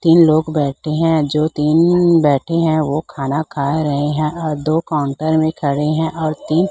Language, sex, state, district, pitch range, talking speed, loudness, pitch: Hindi, female, Chhattisgarh, Raipur, 150-160 Hz, 190 wpm, -16 LUFS, 155 Hz